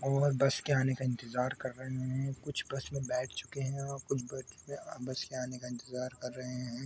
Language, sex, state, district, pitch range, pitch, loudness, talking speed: Hindi, male, Jharkhand, Sahebganj, 125-135 Hz, 130 Hz, -36 LUFS, 245 wpm